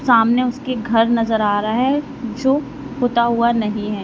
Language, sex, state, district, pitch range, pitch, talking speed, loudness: Hindi, female, Uttar Pradesh, Lalitpur, 225-255 Hz, 235 Hz, 180 wpm, -18 LUFS